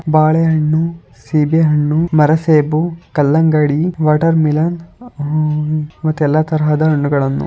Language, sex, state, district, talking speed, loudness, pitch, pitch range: Kannada, female, Karnataka, Chamarajanagar, 105 wpm, -14 LUFS, 155 Hz, 150-160 Hz